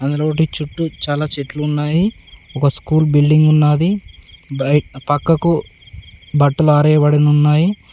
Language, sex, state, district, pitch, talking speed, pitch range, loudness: Telugu, male, Telangana, Mahabubabad, 150 Hz, 90 wpm, 145-155 Hz, -15 LUFS